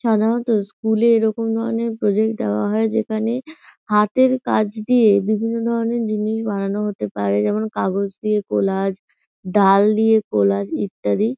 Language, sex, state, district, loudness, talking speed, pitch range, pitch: Bengali, female, West Bengal, North 24 Parganas, -19 LUFS, 135 wpm, 195-225 Hz, 215 Hz